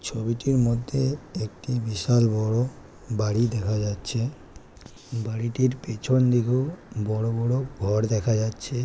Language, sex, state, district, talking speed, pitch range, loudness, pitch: Bengali, female, West Bengal, Kolkata, 110 wpm, 110-125 Hz, -25 LUFS, 115 Hz